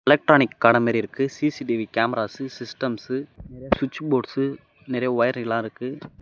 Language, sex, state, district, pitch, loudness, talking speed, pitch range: Tamil, male, Tamil Nadu, Namakkal, 130 Hz, -23 LUFS, 135 wpm, 115-135 Hz